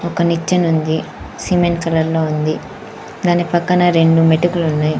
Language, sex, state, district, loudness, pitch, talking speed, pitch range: Telugu, female, Andhra Pradesh, Sri Satya Sai, -15 LUFS, 165 Hz, 145 wpm, 160-175 Hz